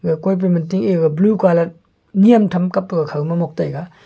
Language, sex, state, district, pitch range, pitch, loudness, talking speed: Wancho, male, Arunachal Pradesh, Longding, 165-190 Hz, 175 Hz, -16 LUFS, 175 wpm